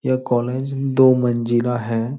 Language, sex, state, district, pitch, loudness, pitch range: Hindi, male, Bihar, Jahanabad, 125 Hz, -19 LUFS, 120-130 Hz